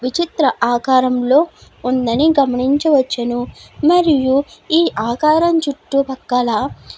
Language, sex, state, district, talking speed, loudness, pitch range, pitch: Telugu, female, Andhra Pradesh, Guntur, 85 wpm, -16 LUFS, 250-310 Hz, 270 Hz